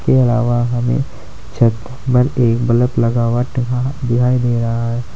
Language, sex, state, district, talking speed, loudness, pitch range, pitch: Hindi, male, Uttar Pradesh, Saharanpur, 165 wpm, -16 LUFS, 115-125 Hz, 120 Hz